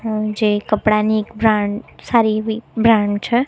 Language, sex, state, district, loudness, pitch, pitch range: Gujarati, female, Gujarat, Gandhinagar, -17 LUFS, 215 Hz, 210-225 Hz